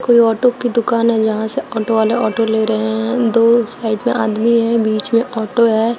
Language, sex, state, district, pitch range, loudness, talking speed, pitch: Hindi, female, Uttar Pradesh, Shamli, 220-235 Hz, -15 LUFS, 220 wpm, 230 Hz